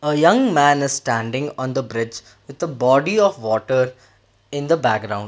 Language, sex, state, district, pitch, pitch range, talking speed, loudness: English, male, Karnataka, Bangalore, 130 Hz, 115-145 Hz, 170 wpm, -19 LUFS